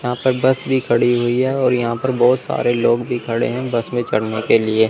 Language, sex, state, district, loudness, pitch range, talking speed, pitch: Hindi, male, Chandigarh, Chandigarh, -17 LUFS, 120-130 Hz, 255 wpm, 120 Hz